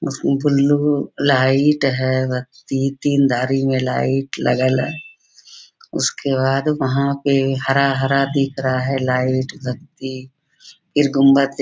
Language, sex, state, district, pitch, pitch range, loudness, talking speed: Hindi, female, Bihar, Bhagalpur, 135 Hz, 130-140 Hz, -18 LUFS, 125 wpm